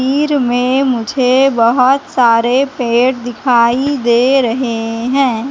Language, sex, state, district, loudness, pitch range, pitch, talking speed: Hindi, female, Madhya Pradesh, Katni, -13 LUFS, 235-270 Hz, 250 Hz, 100 wpm